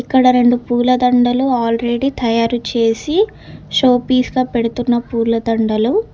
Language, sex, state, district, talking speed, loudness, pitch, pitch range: Telugu, female, Telangana, Hyderabad, 105 wpm, -15 LUFS, 245 Hz, 230-255 Hz